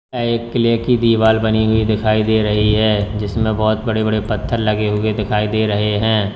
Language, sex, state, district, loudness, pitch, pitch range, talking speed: Hindi, male, Uttar Pradesh, Lalitpur, -16 LUFS, 110 Hz, 105-110 Hz, 200 wpm